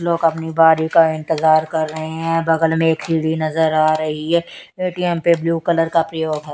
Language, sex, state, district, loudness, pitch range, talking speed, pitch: Hindi, female, Haryana, Charkhi Dadri, -17 LUFS, 160-165 Hz, 200 wpm, 160 Hz